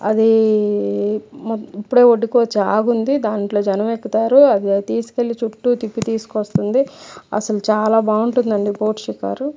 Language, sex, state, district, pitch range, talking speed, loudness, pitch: Telugu, male, Telangana, Karimnagar, 210-235 Hz, 115 wpm, -17 LUFS, 220 Hz